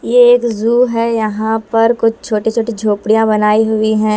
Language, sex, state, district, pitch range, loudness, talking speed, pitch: Hindi, female, Chhattisgarh, Raipur, 215-230 Hz, -13 LUFS, 185 wpm, 225 Hz